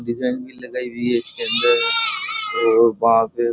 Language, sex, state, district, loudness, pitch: Rajasthani, male, Rajasthan, Churu, -18 LUFS, 125 Hz